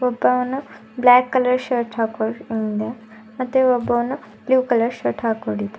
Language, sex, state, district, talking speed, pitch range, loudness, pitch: Kannada, female, Karnataka, Bidar, 105 wpm, 220-255 Hz, -20 LUFS, 240 Hz